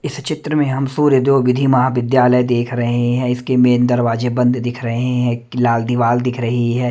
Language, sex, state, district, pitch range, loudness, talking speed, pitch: Hindi, male, Bihar, Katihar, 120-130 Hz, -16 LUFS, 210 wpm, 125 Hz